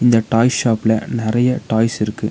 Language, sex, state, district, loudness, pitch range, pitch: Tamil, male, Tamil Nadu, Nilgiris, -17 LUFS, 110-120 Hz, 115 Hz